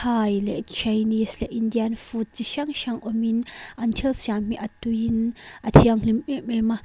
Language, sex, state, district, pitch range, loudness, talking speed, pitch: Mizo, female, Mizoram, Aizawl, 225-235 Hz, -23 LUFS, 175 wpm, 225 Hz